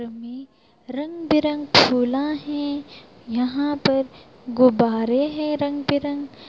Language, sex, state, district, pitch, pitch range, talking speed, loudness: Hindi, female, Bihar, Sitamarhi, 280 Hz, 250-290 Hz, 100 wpm, -21 LUFS